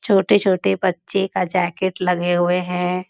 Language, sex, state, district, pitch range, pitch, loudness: Hindi, female, Bihar, Bhagalpur, 180-195 Hz, 185 Hz, -19 LUFS